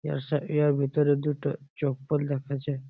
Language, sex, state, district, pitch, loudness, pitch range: Bengali, male, West Bengal, Malda, 145 Hz, -28 LUFS, 140-150 Hz